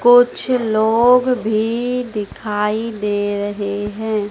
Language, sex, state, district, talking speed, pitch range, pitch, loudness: Hindi, female, Madhya Pradesh, Dhar, 95 wpm, 210-245 Hz, 220 Hz, -18 LUFS